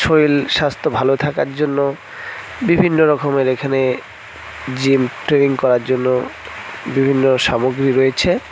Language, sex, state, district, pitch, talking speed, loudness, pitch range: Bengali, male, West Bengal, Cooch Behar, 135 Hz, 105 wpm, -16 LUFS, 130-140 Hz